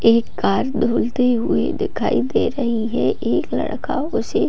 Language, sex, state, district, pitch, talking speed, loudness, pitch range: Hindi, female, Bihar, Gopalganj, 235 Hz, 160 wpm, -20 LUFS, 230-245 Hz